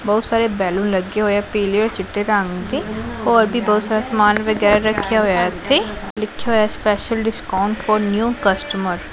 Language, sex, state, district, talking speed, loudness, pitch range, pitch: Punjabi, female, Punjab, Pathankot, 185 wpm, -18 LUFS, 200-220 Hz, 210 Hz